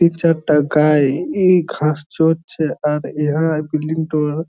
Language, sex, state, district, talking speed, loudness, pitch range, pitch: Bengali, male, West Bengal, Jhargram, 145 wpm, -17 LUFS, 150-160 Hz, 155 Hz